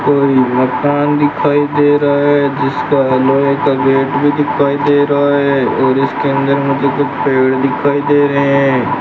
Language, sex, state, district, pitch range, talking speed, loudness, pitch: Hindi, male, Rajasthan, Bikaner, 135-145 Hz, 165 wpm, -12 LUFS, 140 Hz